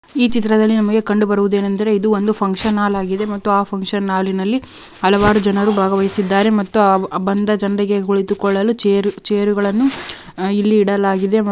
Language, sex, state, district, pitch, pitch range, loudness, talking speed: Kannada, female, Karnataka, Raichur, 205 Hz, 195-210 Hz, -16 LUFS, 155 wpm